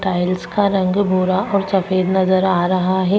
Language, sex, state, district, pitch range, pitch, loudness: Hindi, male, Delhi, New Delhi, 185-195 Hz, 185 Hz, -17 LUFS